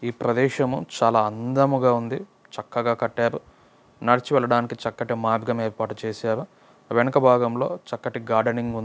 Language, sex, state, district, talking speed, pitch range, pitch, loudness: Telugu, male, Andhra Pradesh, Anantapur, 115 wpm, 115-130 Hz, 120 Hz, -23 LUFS